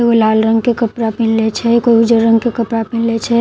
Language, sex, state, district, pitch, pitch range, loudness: Maithili, female, Bihar, Katihar, 230 Hz, 225-235 Hz, -13 LUFS